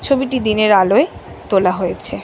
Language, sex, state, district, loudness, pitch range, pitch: Bengali, female, West Bengal, North 24 Parganas, -15 LUFS, 185-250 Hz, 210 Hz